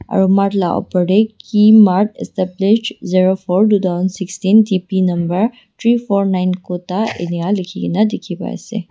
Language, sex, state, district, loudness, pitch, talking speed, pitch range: Nagamese, female, Nagaland, Dimapur, -15 LUFS, 195 Hz, 175 wpm, 185-215 Hz